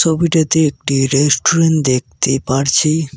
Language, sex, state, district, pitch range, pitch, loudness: Bengali, male, West Bengal, Cooch Behar, 135-160 Hz, 150 Hz, -14 LUFS